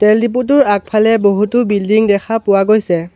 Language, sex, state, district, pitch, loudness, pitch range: Assamese, male, Assam, Sonitpur, 215 Hz, -13 LUFS, 200-225 Hz